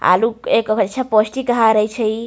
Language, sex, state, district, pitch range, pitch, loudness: Maithili, female, Bihar, Samastipur, 215-235 Hz, 220 Hz, -16 LUFS